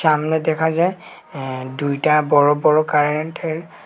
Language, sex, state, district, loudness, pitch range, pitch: Bengali, male, Tripura, West Tripura, -18 LUFS, 145-160 Hz, 155 Hz